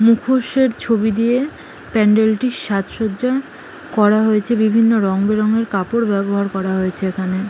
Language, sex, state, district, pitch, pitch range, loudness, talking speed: Bengali, female, West Bengal, Malda, 220 Hz, 200-230 Hz, -17 LUFS, 120 wpm